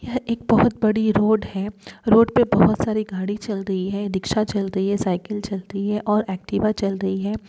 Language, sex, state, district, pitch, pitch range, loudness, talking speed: Hindi, female, Bihar, East Champaran, 205 Hz, 195-215 Hz, -21 LUFS, 215 wpm